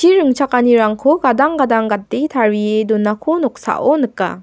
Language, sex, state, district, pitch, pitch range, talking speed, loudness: Garo, female, Meghalaya, West Garo Hills, 245 Hz, 215-285 Hz, 110 wpm, -15 LUFS